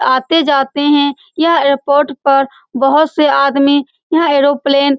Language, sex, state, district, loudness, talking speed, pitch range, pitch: Hindi, female, Bihar, Saran, -12 LUFS, 145 wpm, 275-295 Hz, 285 Hz